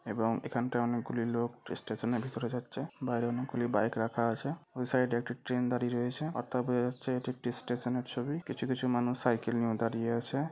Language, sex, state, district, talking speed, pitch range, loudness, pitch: Bengali, male, West Bengal, Malda, 200 wpm, 120-125 Hz, -34 LUFS, 120 Hz